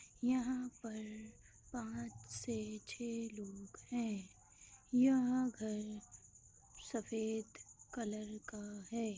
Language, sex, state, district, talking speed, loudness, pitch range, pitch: Hindi, female, Bihar, Madhepura, 85 wpm, -41 LUFS, 210-240 Hz, 220 Hz